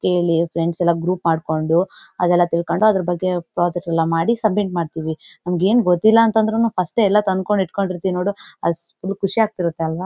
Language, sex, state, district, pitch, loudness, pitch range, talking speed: Kannada, female, Karnataka, Bellary, 180 Hz, -19 LUFS, 170-200 Hz, 165 wpm